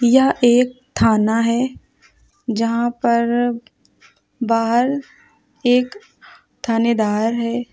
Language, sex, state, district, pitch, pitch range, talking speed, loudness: Hindi, female, Uttar Pradesh, Lucknow, 240 Hz, 230-250 Hz, 75 wpm, -18 LUFS